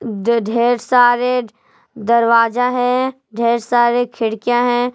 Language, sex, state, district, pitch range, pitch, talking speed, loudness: Hindi, female, Jharkhand, Palamu, 235-245 Hz, 240 Hz, 110 wpm, -16 LUFS